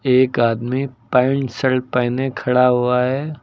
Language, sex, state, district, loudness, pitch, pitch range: Hindi, male, Uttar Pradesh, Lucknow, -18 LUFS, 125 Hz, 125-130 Hz